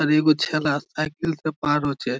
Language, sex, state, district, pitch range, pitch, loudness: Bengali, male, West Bengal, Malda, 145-155 Hz, 155 Hz, -23 LUFS